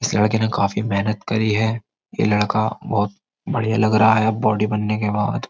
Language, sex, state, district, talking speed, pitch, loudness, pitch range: Hindi, male, Uttar Pradesh, Jyotiba Phule Nagar, 220 wpm, 110 Hz, -20 LUFS, 105-110 Hz